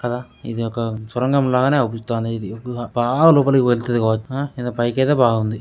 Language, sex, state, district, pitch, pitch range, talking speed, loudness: Telugu, male, Telangana, Karimnagar, 120 Hz, 115-130 Hz, 160 wpm, -19 LUFS